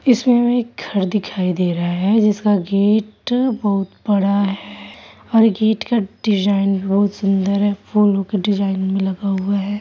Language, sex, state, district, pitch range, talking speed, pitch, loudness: Hindi, female, Bihar, East Champaran, 195-215 Hz, 160 wpm, 200 Hz, -18 LUFS